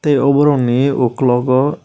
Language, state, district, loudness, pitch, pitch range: Kokborok, Tripura, West Tripura, -14 LUFS, 135 Hz, 125-145 Hz